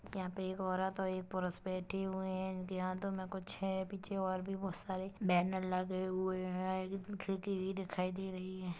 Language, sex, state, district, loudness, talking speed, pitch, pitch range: Hindi, female, Chhattisgarh, Kabirdham, -39 LUFS, 205 wpm, 185 Hz, 185-190 Hz